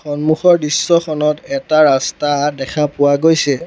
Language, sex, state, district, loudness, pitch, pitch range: Assamese, male, Assam, Sonitpur, -14 LUFS, 150 Hz, 145-155 Hz